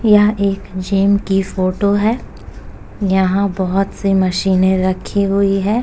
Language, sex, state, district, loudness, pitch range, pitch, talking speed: Hindi, female, Uttar Pradesh, Jalaun, -16 LUFS, 190-200 Hz, 195 Hz, 135 wpm